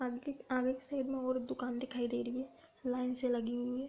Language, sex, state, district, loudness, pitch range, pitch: Hindi, female, Uttar Pradesh, Budaun, -38 LUFS, 245-260 Hz, 255 Hz